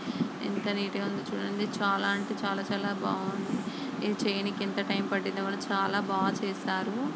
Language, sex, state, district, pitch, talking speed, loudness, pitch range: Telugu, female, Andhra Pradesh, Guntur, 200 Hz, 160 wpm, -31 LUFS, 200-210 Hz